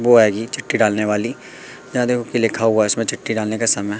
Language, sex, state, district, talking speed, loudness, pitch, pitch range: Hindi, male, Madhya Pradesh, Katni, 225 wpm, -18 LUFS, 115 Hz, 105-120 Hz